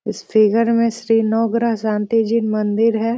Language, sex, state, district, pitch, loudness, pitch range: Hindi, female, Bihar, Jahanabad, 225 Hz, -17 LUFS, 220-230 Hz